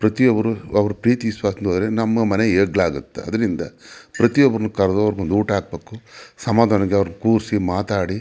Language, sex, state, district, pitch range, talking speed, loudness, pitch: Kannada, male, Karnataka, Mysore, 100-110 Hz, 130 wpm, -19 LUFS, 105 Hz